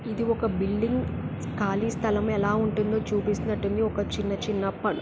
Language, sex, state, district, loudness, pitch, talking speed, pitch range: Telugu, female, Andhra Pradesh, Krishna, -27 LUFS, 210 Hz, 155 wpm, 205-220 Hz